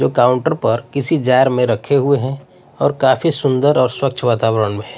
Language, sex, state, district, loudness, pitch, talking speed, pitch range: Hindi, male, Odisha, Nuapada, -16 LUFS, 130 Hz, 205 wpm, 120-140 Hz